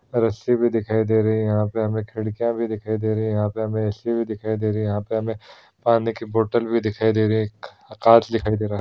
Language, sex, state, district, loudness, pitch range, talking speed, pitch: Hindi, male, Bihar, East Champaran, -22 LUFS, 110-115 Hz, 275 wpm, 110 Hz